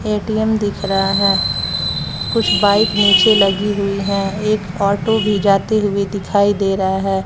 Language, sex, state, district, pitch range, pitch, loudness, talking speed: Hindi, female, Bihar, West Champaran, 195-210 Hz, 200 Hz, -15 LUFS, 155 wpm